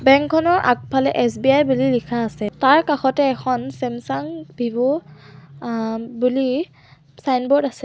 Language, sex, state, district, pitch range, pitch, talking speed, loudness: Assamese, female, Assam, Sonitpur, 230-270 Hz, 255 Hz, 120 wpm, -19 LUFS